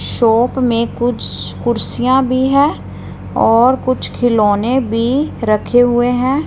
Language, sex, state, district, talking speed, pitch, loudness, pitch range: Hindi, female, Punjab, Fazilka, 120 wpm, 245 Hz, -14 LUFS, 230-260 Hz